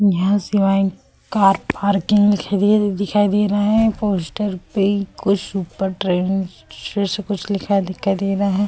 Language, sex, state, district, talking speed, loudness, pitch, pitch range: Hindi, female, Uttar Pradesh, Etah, 145 wpm, -19 LUFS, 200 Hz, 195-205 Hz